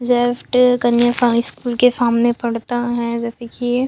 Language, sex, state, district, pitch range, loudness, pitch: Hindi, female, Chhattisgarh, Sukma, 235-245 Hz, -17 LUFS, 240 Hz